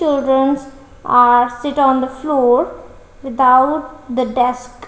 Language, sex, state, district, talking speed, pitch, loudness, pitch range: English, female, Punjab, Kapurthala, 110 wpm, 260 Hz, -15 LUFS, 250-275 Hz